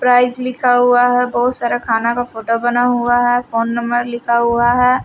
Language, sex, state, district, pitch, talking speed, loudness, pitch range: Hindi, female, Haryana, Rohtak, 245 Hz, 200 wpm, -15 LUFS, 235-245 Hz